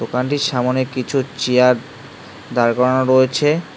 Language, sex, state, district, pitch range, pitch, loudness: Bengali, male, West Bengal, Cooch Behar, 125-140 Hz, 130 Hz, -17 LUFS